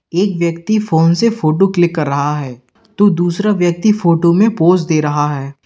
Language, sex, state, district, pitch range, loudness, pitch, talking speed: Hindi, male, Uttar Pradesh, Lalitpur, 155-205 Hz, -14 LUFS, 170 Hz, 190 wpm